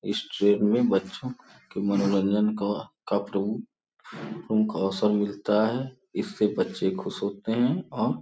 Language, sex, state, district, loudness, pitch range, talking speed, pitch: Hindi, male, Uttar Pradesh, Gorakhpur, -26 LUFS, 100-110 Hz, 140 wpm, 105 Hz